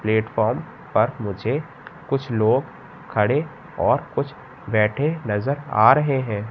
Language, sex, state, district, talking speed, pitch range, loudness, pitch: Hindi, male, Madhya Pradesh, Katni, 120 wpm, 110-140 Hz, -22 LUFS, 115 Hz